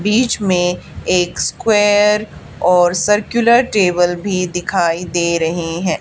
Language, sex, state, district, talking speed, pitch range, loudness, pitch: Hindi, female, Haryana, Charkhi Dadri, 120 wpm, 175-210 Hz, -15 LUFS, 180 Hz